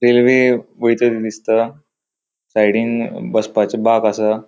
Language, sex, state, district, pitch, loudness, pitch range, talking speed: Konkani, male, Goa, North and South Goa, 115 Hz, -16 LUFS, 110-120 Hz, 95 wpm